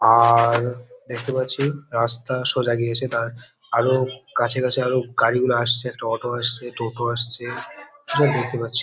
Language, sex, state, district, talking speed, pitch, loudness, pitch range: Bengali, male, West Bengal, Kolkata, 145 wpm, 120 Hz, -20 LUFS, 120-130 Hz